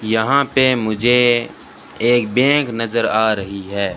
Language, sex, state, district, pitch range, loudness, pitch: Hindi, male, Rajasthan, Bikaner, 110-125 Hz, -16 LUFS, 115 Hz